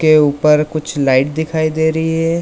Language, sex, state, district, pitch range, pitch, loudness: Hindi, male, Bihar, Lakhisarai, 150-160 Hz, 155 Hz, -15 LUFS